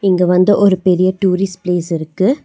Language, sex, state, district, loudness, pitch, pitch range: Tamil, female, Tamil Nadu, Nilgiris, -14 LUFS, 185 Hz, 180-195 Hz